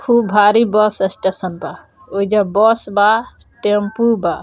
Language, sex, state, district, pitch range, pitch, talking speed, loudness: Bhojpuri, female, Bihar, Muzaffarpur, 200-225 Hz, 210 Hz, 135 wpm, -15 LUFS